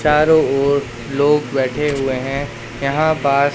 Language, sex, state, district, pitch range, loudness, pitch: Hindi, male, Madhya Pradesh, Katni, 135-150 Hz, -17 LUFS, 140 Hz